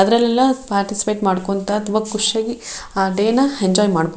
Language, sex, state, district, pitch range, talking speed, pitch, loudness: Kannada, female, Karnataka, Shimoga, 195-230 Hz, 170 wpm, 210 Hz, -18 LUFS